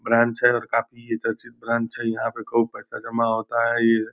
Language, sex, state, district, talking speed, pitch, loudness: Hindi, male, Bihar, Purnia, 260 wpm, 115 Hz, -23 LUFS